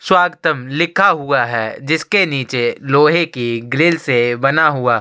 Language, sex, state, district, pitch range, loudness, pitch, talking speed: Hindi, male, Chhattisgarh, Sukma, 120-170 Hz, -15 LUFS, 140 Hz, 145 wpm